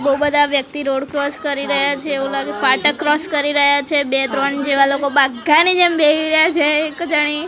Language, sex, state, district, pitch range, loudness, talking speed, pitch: Gujarati, female, Gujarat, Gandhinagar, 280-300 Hz, -15 LUFS, 210 wpm, 290 Hz